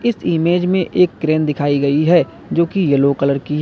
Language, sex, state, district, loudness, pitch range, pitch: Hindi, male, Uttar Pradesh, Lalitpur, -16 LUFS, 145-175 Hz, 155 Hz